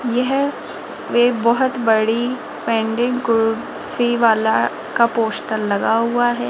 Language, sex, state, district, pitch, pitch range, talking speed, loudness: Hindi, female, Rajasthan, Jaipur, 235 Hz, 225-245 Hz, 110 wpm, -18 LUFS